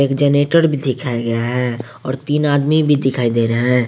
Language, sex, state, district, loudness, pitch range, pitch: Hindi, male, Jharkhand, Garhwa, -16 LUFS, 120-145 Hz, 130 Hz